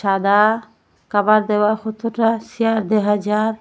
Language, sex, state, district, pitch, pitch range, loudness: Bengali, female, Assam, Hailakandi, 215 Hz, 210-225 Hz, -18 LUFS